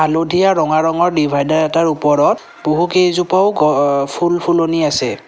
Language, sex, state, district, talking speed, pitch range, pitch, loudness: Assamese, male, Assam, Kamrup Metropolitan, 135 wpm, 150-175 Hz, 160 Hz, -14 LUFS